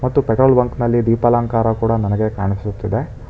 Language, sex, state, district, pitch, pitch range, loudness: Kannada, male, Karnataka, Bangalore, 115 Hz, 110-120 Hz, -17 LUFS